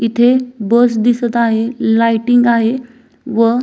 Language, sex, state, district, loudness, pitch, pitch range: Marathi, female, Maharashtra, Dhule, -13 LUFS, 235 Hz, 230-245 Hz